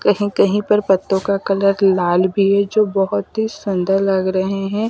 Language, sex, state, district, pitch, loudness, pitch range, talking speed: Hindi, female, Delhi, New Delhi, 195 Hz, -17 LUFS, 190-205 Hz, 185 wpm